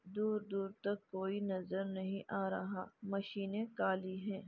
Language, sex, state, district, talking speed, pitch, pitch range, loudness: Hindi, female, Chhattisgarh, Bastar, 145 wpm, 195 Hz, 190-205 Hz, -40 LUFS